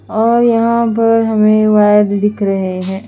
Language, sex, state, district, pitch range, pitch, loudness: Hindi, female, Haryana, Charkhi Dadri, 205-230 Hz, 215 Hz, -12 LUFS